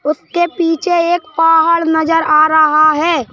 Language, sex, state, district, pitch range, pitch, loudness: Hindi, female, Madhya Pradesh, Bhopal, 310-335 Hz, 325 Hz, -12 LUFS